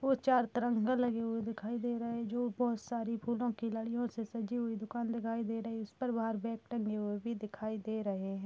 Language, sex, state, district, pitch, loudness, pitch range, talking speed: Hindi, female, Bihar, Purnia, 230 Hz, -36 LUFS, 220-240 Hz, 240 wpm